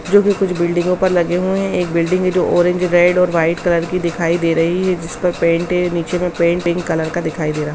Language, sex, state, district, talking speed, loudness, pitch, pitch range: Hindi, female, Bihar, Samastipur, 280 wpm, -16 LUFS, 175 Hz, 170-180 Hz